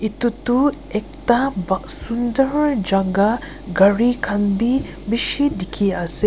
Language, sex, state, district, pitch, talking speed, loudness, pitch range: Nagamese, female, Nagaland, Kohima, 230 Hz, 115 wpm, -19 LUFS, 200-260 Hz